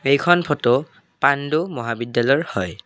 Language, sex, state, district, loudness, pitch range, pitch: Assamese, male, Assam, Kamrup Metropolitan, -20 LUFS, 120-150 Hz, 135 Hz